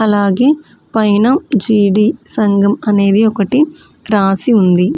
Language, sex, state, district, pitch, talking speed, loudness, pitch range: Telugu, female, Andhra Pradesh, Manyam, 210 Hz, 95 wpm, -12 LUFS, 200-240 Hz